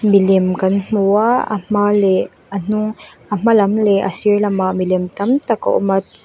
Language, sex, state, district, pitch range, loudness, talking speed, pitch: Mizo, female, Mizoram, Aizawl, 195-210 Hz, -16 LUFS, 210 wpm, 205 Hz